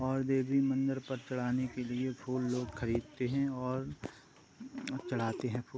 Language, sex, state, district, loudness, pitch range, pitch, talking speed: Hindi, male, Uttar Pradesh, Gorakhpur, -35 LUFS, 125-135 Hz, 130 Hz, 155 wpm